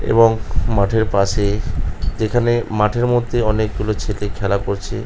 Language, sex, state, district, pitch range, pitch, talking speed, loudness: Bengali, male, West Bengal, North 24 Parganas, 100-115 Hz, 105 Hz, 130 wpm, -18 LUFS